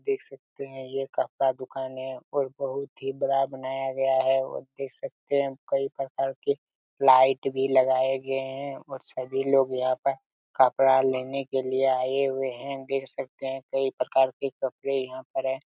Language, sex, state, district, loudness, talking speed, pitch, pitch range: Hindi, male, Chhattisgarh, Raigarh, -27 LUFS, 185 wpm, 135 Hz, 130-135 Hz